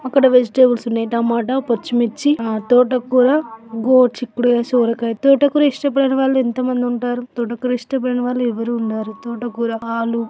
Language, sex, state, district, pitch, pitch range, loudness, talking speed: Telugu, female, Telangana, Karimnagar, 245 Hz, 235-255 Hz, -17 LUFS, 120 wpm